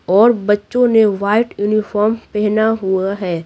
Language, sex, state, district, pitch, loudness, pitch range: Hindi, female, Bihar, Patna, 210 Hz, -15 LUFS, 200-220 Hz